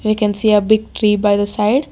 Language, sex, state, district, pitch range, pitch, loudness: English, female, Karnataka, Bangalore, 210-220 Hz, 210 Hz, -15 LUFS